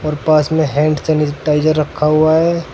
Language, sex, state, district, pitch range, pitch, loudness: Hindi, male, Uttar Pradesh, Saharanpur, 150-155 Hz, 155 Hz, -14 LUFS